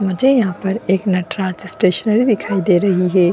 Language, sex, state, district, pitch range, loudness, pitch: Hindi, female, Bihar, Gaya, 185-215 Hz, -16 LUFS, 190 Hz